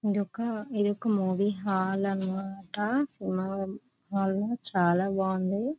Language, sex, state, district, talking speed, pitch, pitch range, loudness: Telugu, female, Andhra Pradesh, Visakhapatnam, 95 wpm, 195 Hz, 190-205 Hz, -29 LUFS